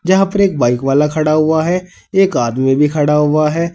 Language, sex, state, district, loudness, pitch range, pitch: Hindi, male, Uttar Pradesh, Saharanpur, -14 LUFS, 145-180 Hz, 155 Hz